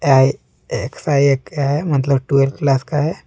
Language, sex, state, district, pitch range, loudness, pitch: Hindi, male, Jharkhand, Deoghar, 135-145 Hz, -17 LUFS, 140 Hz